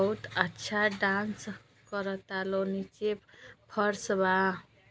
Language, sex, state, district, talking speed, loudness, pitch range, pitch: Bhojpuri, female, Uttar Pradesh, Deoria, 100 wpm, -31 LUFS, 190-210 Hz, 195 Hz